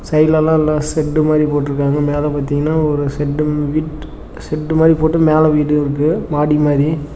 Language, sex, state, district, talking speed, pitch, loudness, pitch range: Tamil, male, Tamil Nadu, Namakkal, 160 wpm, 150 Hz, -15 LUFS, 145-155 Hz